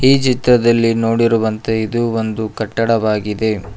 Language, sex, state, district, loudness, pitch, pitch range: Kannada, male, Karnataka, Koppal, -16 LUFS, 115 Hz, 110-115 Hz